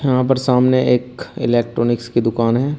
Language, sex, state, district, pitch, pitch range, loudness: Hindi, male, Uttar Pradesh, Shamli, 125 Hz, 120-130 Hz, -17 LUFS